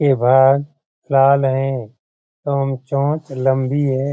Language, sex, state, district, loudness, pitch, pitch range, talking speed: Hindi, male, Bihar, Jamui, -17 LUFS, 135 Hz, 130-140 Hz, 115 wpm